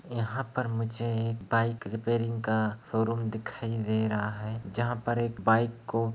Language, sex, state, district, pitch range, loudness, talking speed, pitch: Hindi, male, Bihar, Begusarai, 110-115 Hz, -30 LUFS, 175 wpm, 115 Hz